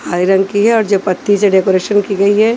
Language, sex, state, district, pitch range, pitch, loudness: Hindi, female, Maharashtra, Washim, 190-205 Hz, 200 Hz, -12 LUFS